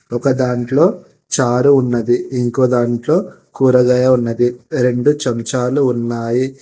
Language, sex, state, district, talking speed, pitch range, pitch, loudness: Telugu, male, Telangana, Hyderabad, 80 wpm, 120-130 Hz, 125 Hz, -15 LUFS